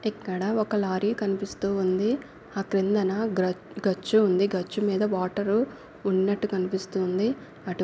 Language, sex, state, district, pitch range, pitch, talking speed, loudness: Telugu, female, Andhra Pradesh, Anantapur, 190-210 Hz, 195 Hz, 120 wpm, -26 LUFS